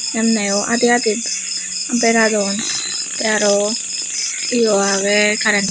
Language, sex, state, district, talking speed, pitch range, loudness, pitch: Chakma, female, Tripura, West Tripura, 95 wpm, 205-230 Hz, -16 LUFS, 215 Hz